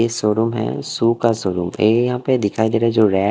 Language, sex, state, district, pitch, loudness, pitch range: Hindi, male, Haryana, Rohtak, 115 Hz, -18 LUFS, 105-115 Hz